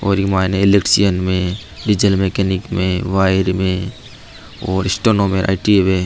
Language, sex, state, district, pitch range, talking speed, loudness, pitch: Marwari, male, Rajasthan, Nagaur, 95-100 Hz, 150 wpm, -16 LUFS, 95 Hz